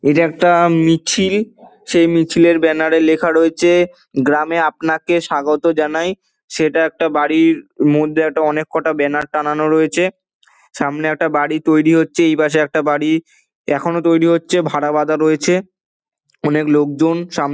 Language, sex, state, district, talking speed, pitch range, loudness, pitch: Bengali, male, West Bengal, Dakshin Dinajpur, 135 wpm, 150-170 Hz, -15 LUFS, 160 Hz